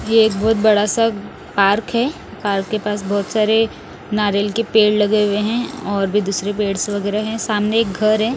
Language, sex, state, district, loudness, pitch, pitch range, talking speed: Hindi, male, Odisha, Nuapada, -18 LUFS, 210 Hz, 205-220 Hz, 200 wpm